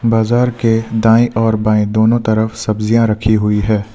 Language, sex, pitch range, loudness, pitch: Hindi, male, 110-115 Hz, -14 LUFS, 110 Hz